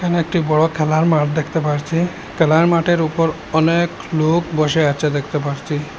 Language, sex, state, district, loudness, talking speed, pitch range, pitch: Bengali, male, Assam, Hailakandi, -17 LUFS, 160 wpm, 150-165 Hz, 160 Hz